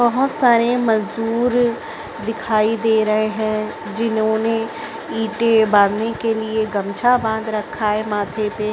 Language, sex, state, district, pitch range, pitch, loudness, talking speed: Hindi, female, Chhattisgarh, Raigarh, 215-225 Hz, 220 Hz, -19 LUFS, 130 wpm